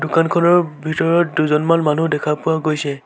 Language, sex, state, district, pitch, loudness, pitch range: Assamese, male, Assam, Sonitpur, 160 Hz, -17 LUFS, 150-165 Hz